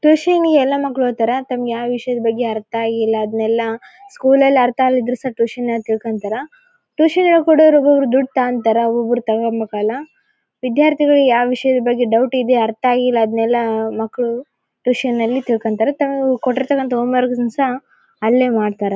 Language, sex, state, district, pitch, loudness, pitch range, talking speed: Kannada, female, Karnataka, Bellary, 245 Hz, -16 LUFS, 230-270 Hz, 165 wpm